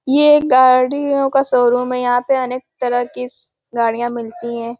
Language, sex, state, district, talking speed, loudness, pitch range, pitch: Hindi, female, Uttar Pradesh, Varanasi, 175 wpm, -16 LUFS, 240-265 Hz, 250 Hz